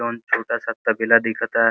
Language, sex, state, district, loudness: Bhojpuri, male, Uttar Pradesh, Deoria, -20 LUFS